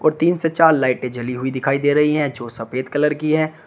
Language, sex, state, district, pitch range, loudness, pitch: Hindi, male, Uttar Pradesh, Shamli, 130-155 Hz, -19 LUFS, 145 Hz